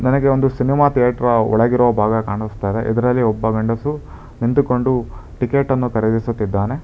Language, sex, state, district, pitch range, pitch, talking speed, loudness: Kannada, male, Karnataka, Bangalore, 110-130 Hz, 120 Hz, 130 wpm, -17 LUFS